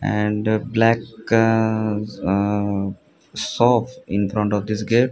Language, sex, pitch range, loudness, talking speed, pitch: English, male, 105-115 Hz, -20 LUFS, 95 wpm, 110 Hz